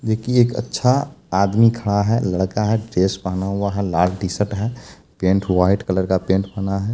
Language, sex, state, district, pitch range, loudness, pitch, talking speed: Maithili, male, Bihar, Supaul, 95-110 Hz, -19 LUFS, 100 Hz, 190 wpm